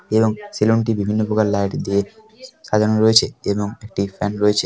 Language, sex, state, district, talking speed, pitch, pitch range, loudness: Bengali, male, West Bengal, Paschim Medinipur, 155 wpm, 105 Hz, 100-110 Hz, -19 LUFS